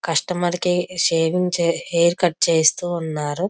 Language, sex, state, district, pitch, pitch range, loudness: Telugu, female, Andhra Pradesh, Visakhapatnam, 170 Hz, 165-180 Hz, -19 LUFS